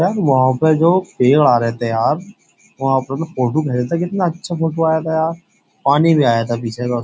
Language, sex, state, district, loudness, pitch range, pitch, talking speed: Hindi, male, Uttar Pradesh, Jyotiba Phule Nagar, -16 LUFS, 125-165 Hz, 155 Hz, 220 wpm